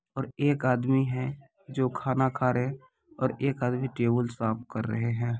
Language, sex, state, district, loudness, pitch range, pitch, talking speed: Maithili, male, Bihar, Supaul, -29 LUFS, 120-135 Hz, 130 Hz, 180 wpm